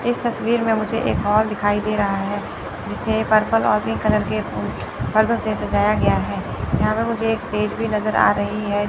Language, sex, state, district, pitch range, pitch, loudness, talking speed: Hindi, female, Chandigarh, Chandigarh, 210-225 Hz, 215 Hz, -20 LUFS, 210 wpm